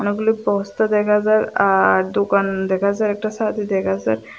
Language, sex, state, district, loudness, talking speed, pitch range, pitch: Bengali, female, Tripura, West Tripura, -18 LUFS, 165 wpm, 195-215 Hz, 205 Hz